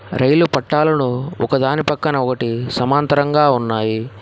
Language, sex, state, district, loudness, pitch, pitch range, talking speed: Telugu, male, Telangana, Hyderabad, -17 LUFS, 135 Hz, 125-150 Hz, 100 wpm